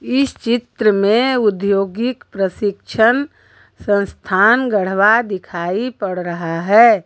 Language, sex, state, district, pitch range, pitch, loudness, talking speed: Hindi, female, Jharkhand, Garhwa, 195-235 Hz, 210 Hz, -16 LUFS, 95 wpm